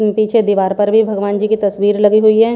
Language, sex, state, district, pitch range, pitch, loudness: Hindi, female, Haryana, Charkhi Dadri, 205-215 Hz, 210 Hz, -13 LUFS